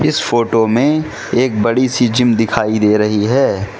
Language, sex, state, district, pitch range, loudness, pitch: Hindi, male, Mizoram, Aizawl, 110-130 Hz, -14 LUFS, 120 Hz